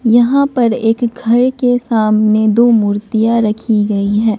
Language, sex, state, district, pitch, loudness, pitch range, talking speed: Hindi, female, Bihar, Katihar, 225 Hz, -13 LUFS, 215-240 Hz, 150 wpm